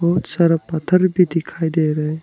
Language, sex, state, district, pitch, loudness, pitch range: Hindi, male, Arunachal Pradesh, Lower Dibang Valley, 165 Hz, -18 LUFS, 160-175 Hz